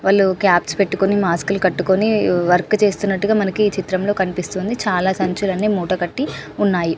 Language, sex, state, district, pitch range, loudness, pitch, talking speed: Telugu, female, Telangana, Karimnagar, 185-205 Hz, -18 LUFS, 195 Hz, 145 wpm